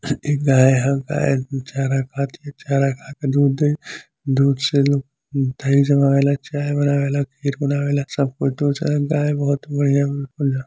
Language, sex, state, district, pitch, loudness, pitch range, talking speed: Bhojpuri, male, Uttar Pradesh, Gorakhpur, 140 Hz, -19 LUFS, 135-145 Hz, 155 wpm